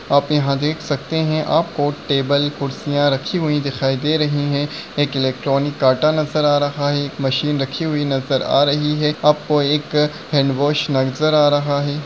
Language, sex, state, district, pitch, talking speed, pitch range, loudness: Hindi, male, Maharashtra, Solapur, 145 Hz, 180 wpm, 140-150 Hz, -18 LUFS